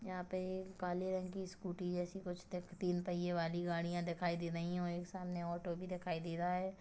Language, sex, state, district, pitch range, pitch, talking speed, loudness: Hindi, female, Chhattisgarh, Kabirdham, 175-185 Hz, 180 Hz, 230 wpm, -42 LUFS